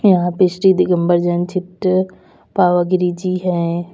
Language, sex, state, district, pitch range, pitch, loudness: Hindi, female, Uttar Pradesh, Lalitpur, 175-185 Hz, 180 Hz, -16 LUFS